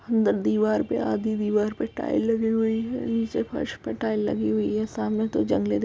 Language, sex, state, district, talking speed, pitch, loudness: Hindi, female, Uttar Pradesh, Etah, 225 wpm, 110 Hz, -25 LUFS